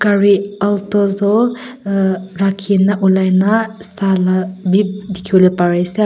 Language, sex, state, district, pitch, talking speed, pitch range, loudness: Nagamese, female, Nagaland, Kohima, 195 Hz, 110 wpm, 190-205 Hz, -14 LUFS